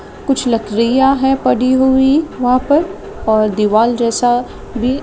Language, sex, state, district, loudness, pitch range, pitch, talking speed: Marathi, female, Maharashtra, Pune, -14 LUFS, 230-270 Hz, 250 Hz, 120 wpm